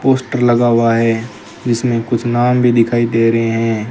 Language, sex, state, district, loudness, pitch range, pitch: Hindi, male, Rajasthan, Bikaner, -14 LUFS, 115-120 Hz, 115 Hz